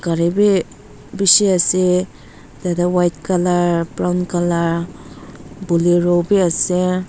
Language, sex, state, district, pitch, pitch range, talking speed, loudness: Nagamese, female, Nagaland, Dimapur, 175 Hz, 170-185 Hz, 100 wpm, -16 LUFS